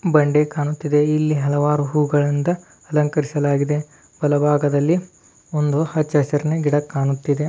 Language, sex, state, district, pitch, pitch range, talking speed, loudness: Kannada, male, Karnataka, Dharwad, 150 Hz, 145-155 Hz, 90 wpm, -19 LUFS